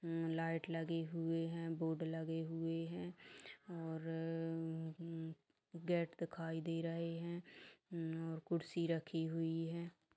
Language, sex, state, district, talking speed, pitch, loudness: Hindi, female, Bihar, Bhagalpur, 105 wpm, 165 Hz, -43 LUFS